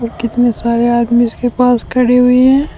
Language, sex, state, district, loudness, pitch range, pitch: Hindi, female, Uttar Pradesh, Shamli, -12 LUFS, 235-250 Hz, 240 Hz